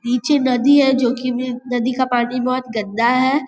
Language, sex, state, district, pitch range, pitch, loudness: Hindi, female, Bihar, Vaishali, 245-260 Hz, 250 Hz, -17 LUFS